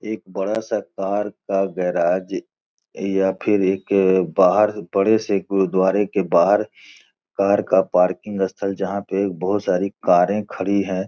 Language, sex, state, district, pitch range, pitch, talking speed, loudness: Hindi, male, Bihar, Gopalganj, 95-100 Hz, 95 Hz, 145 wpm, -20 LUFS